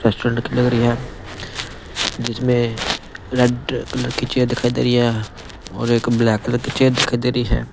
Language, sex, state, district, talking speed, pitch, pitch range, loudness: Hindi, male, Punjab, Pathankot, 185 wpm, 120 Hz, 115-125 Hz, -19 LUFS